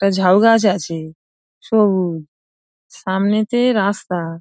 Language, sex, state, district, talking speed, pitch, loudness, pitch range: Bengali, female, West Bengal, Dakshin Dinajpur, 110 wpm, 190 Hz, -16 LUFS, 165-215 Hz